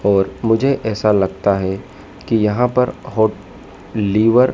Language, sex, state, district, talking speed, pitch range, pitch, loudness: Hindi, male, Madhya Pradesh, Dhar, 145 wpm, 100-125 Hz, 110 Hz, -17 LUFS